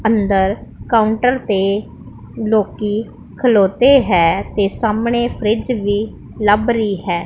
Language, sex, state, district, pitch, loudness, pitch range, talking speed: Punjabi, female, Punjab, Pathankot, 215 Hz, -16 LUFS, 200-230 Hz, 105 wpm